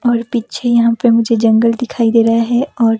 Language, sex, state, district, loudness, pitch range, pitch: Hindi, female, Himachal Pradesh, Shimla, -13 LUFS, 230-240 Hz, 230 Hz